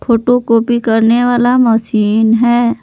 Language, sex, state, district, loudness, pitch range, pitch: Hindi, female, Jharkhand, Palamu, -11 LUFS, 225-245 Hz, 235 Hz